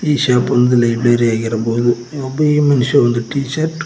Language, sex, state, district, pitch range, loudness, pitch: Kannada, male, Karnataka, Koppal, 120-145 Hz, -15 LUFS, 125 Hz